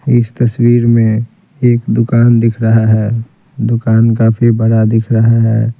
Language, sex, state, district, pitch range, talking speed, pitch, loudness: Hindi, male, Bihar, Patna, 115-120 Hz, 145 wpm, 115 Hz, -11 LUFS